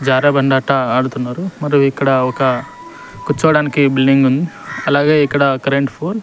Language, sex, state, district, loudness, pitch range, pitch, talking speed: Telugu, male, Andhra Pradesh, Sri Satya Sai, -15 LUFS, 135-150 Hz, 140 Hz, 145 wpm